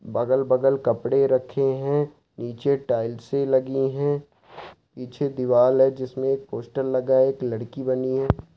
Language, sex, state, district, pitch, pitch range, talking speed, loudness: Hindi, male, Bihar, Saharsa, 130 Hz, 125-135 Hz, 140 wpm, -23 LUFS